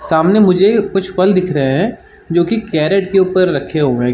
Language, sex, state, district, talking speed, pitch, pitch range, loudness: Hindi, male, Uttar Pradesh, Jalaun, 215 wpm, 185 Hz, 160-195 Hz, -13 LUFS